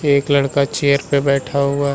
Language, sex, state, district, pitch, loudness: Hindi, male, Uttar Pradesh, Muzaffarnagar, 140 Hz, -17 LUFS